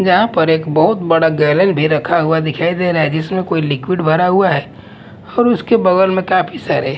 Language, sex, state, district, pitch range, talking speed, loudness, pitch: Hindi, male, Punjab, Fazilka, 160-185 Hz, 215 wpm, -14 LUFS, 170 Hz